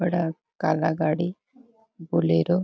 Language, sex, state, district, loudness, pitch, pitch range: Hindi, female, Chhattisgarh, Bastar, -25 LUFS, 170 Hz, 155-180 Hz